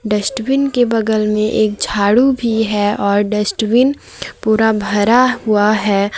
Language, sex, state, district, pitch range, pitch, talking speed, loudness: Hindi, female, Jharkhand, Garhwa, 210-240 Hz, 215 Hz, 135 wpm, -14 LUFS